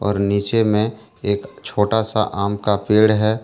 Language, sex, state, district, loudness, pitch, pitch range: Hindi, male, Jharkhand, Deoghar, -19 LUFS, 105 Hz, 100-110 Hz